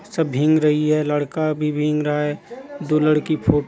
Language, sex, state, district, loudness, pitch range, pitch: Hindi, male, Jharkhand, Deoghar, -20 LUFS, 150-155 Hz, 150 Hz